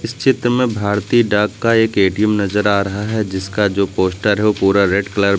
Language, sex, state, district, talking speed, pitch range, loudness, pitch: Hindi, male, Uttar Pradesh, Lucknow, 210 wpm, 100-110 Hz, -16 LUFS, 105 Hz